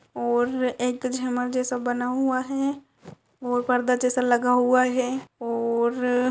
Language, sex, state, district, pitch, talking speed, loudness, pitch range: Hindi, female, Uttar Pradesh, Ghazipur, 250 Hz, 140 wpm, -24 LUFS, 245-255 Hz